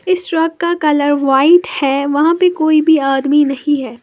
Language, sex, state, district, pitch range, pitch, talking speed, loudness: Hindi, female, Uttar Pradesh, Lalitpur, 275-330 Hz, 295 Hz, 195 wpm, -13 LUFS